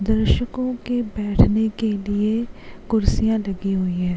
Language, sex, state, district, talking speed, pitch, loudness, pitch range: Hindi, female, Uttarakhand, Uttarkashi, 130 wpm, 215 Hz, -21 LUFS, 200-230 Hz